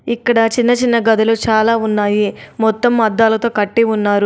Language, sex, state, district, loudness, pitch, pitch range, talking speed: Telugu, female, Telangana, Adilabad, -14 LUFS, 225 Hz, 215-235 Hz, 140 wpm